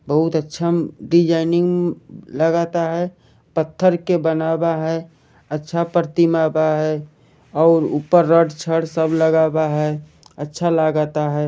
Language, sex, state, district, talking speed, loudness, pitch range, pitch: Bhojpuri, male, Jharkhand, Sahebganj, 125 wpm, -18 LUFS, 155-170 Hz, 160 Hz